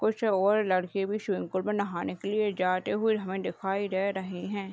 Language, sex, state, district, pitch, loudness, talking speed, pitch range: Hindi, female, Uttar Pradesh, Deoria, 195 Hz, -29 LUFS, 215 wpm, 190-210 Hz